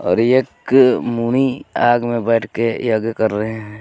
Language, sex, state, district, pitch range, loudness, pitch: Hindi, male, Jharkhand, Garhwa, 110-120 Hz, -17 LUFS, 115 Hz